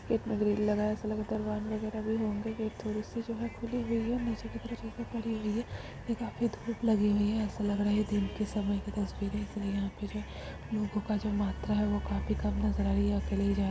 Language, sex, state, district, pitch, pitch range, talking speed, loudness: Hindi, female, Bihar, Purnia, 210 Hz, 205-225 Hz, 255 wpm, -33 LUFS